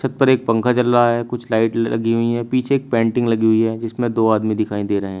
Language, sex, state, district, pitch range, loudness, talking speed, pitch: Hindi, male, Uttar Pradesh, Shamli, 110-120 Hz, -18 LUFS, 300 wpm, 115 Hz